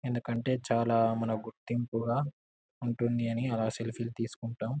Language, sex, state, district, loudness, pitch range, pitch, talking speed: Telugu, male, Telangana, Karimnagar, -32 LUFS, 115-120 Hz, 115 Hz, 100 wpm